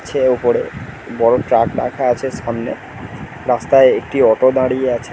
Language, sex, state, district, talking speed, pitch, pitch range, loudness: Bengali, male, West Bengal, Dakshin Dinajpur, 130 wpm, 125 Hz, 120-130 Hz, -15 LUFS